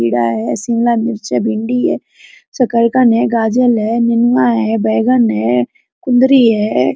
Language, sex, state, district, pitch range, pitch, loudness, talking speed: Hindi, female, Jharkhand, Sahebganj, 220-245 Hz, 230 Hz, -13 LUFS, 140 wpm